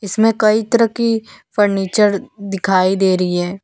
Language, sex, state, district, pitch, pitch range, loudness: Hindi, female, Jharkhand, Deoghar, 205 Hz, 190-220 Hz, -16 LUFS